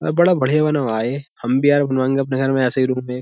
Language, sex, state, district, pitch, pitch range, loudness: Hindi, male, Uttar Pradesh, Jyotiba Phule Nagar, 135 Hz, 130-145 Hz, -18 LUFS